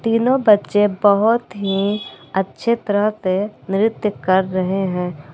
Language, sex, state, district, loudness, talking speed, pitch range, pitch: Hindi, female, Jharkhand, Palamu, -18 LUFS, 125 wpm, 190-215 Hz, 205 Hz